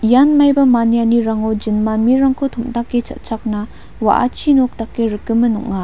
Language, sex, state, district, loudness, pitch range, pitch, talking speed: Garo, female, Meghalaya, West Garo Hills, -15 LUFS, 220-260 Hz, 235 Hz, 125 wpm